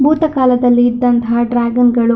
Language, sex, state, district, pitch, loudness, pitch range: Kannada, female, Karnataka, Shimoga, 245 Hz, -13 LUFS, 240-250 Hz